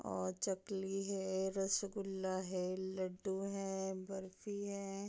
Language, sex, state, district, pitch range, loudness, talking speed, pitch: Hindi, female, Bihar, East Champaran, 190-195 Hz, -41 LUFS, 120 wpm, 195 Hz